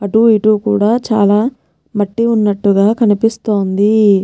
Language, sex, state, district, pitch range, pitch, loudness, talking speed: Telugu, female, Telangana, Nalgonda, 205-225 Hz, 210 Hz, -13 LUFS, 100 wpm